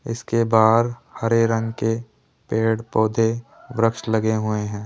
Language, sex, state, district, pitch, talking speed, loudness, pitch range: Hindi, male, Rajasthan, Jaipur, 115 Hz, 135 wpm, -21 LUFS, 110-115 Hz